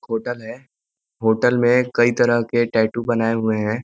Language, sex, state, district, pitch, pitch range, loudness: Hindi, male, Uttar Pradesh, Ghazipur, 120 Hz, 115-120 Hz, -19 LUFS